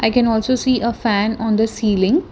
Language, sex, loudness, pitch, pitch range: English, female, -17 LUFS, 225 Hz, 220-250 Hz